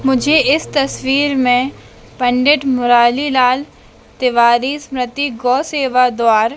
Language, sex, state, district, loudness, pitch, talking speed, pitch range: Hindi, female, Madhya Pradesh, Dhar, -14 LUFS, 260 Hz, 110 wpm, 245-280 Hz